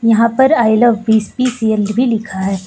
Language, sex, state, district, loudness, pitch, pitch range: Hindi, female, Uttar Pradesh, Lucknow, -13 LUFS, 225 Hz, 215-240 Hz